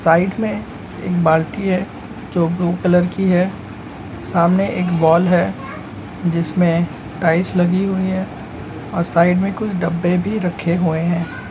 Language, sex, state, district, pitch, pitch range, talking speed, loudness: Hindi, male, Bihar, Darbhanga, 175 Hz, 165-185 Hz, 150 wpm, -18 LUFS